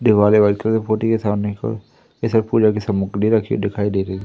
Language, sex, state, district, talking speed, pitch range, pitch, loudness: Hindi, male, Madhya Pradesh, Umaria, 255 wpm, 105-110 Hz, 105 Hz, -18 LUFS